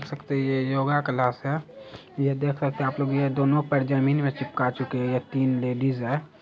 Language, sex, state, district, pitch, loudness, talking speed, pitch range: Hindi, male, Bihar, Araria, 140 Hz, -25 LUFS, 225 wpm, 130-140 Hz